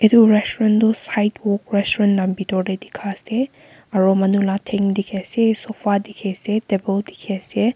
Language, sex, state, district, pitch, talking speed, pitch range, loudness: Nagamese, female, Nagaland, Kohima, 205 Hz, 170 wpm, 195-220 Hz, -19 LUFS